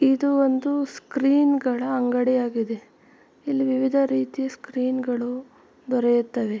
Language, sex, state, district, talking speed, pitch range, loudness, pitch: Kannada, female, Karnataka, Mysore, 110 wpm, 245-275 Hz, -23 LUFS, 260 Hz